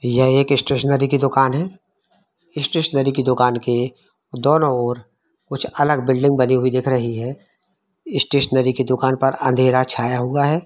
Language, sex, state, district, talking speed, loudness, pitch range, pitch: Hindi, male, Uttar Pradesh, Varanasi, 160 wpm, -18 LUFS, 125-140 Hz, 135 Hz